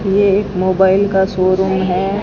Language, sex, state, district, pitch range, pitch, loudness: Hindi, female, Rajasthan, Bikaner, 185-195 Hz, 190 Hz, -14 LUFS